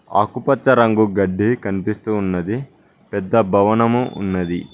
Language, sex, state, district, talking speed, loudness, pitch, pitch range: Telugu, male, Telangana, Mahabubabad, 100 wpm, -18 LUFS, 105 Hz, 100-120 Hz